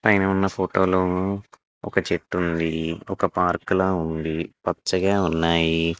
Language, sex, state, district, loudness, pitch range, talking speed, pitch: Telugu, male, Andhra Pradesh, Visakhapatnam, -23 LUFS, 85-95 Hz, 130 wpm, 95 Hz